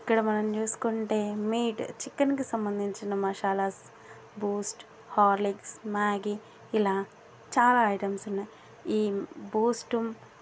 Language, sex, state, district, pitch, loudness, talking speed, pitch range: Telugu, female, Andhra Pradesh, Guntur, 210 Hz, -29 LUFS, 115 wpm, 200-225 Hz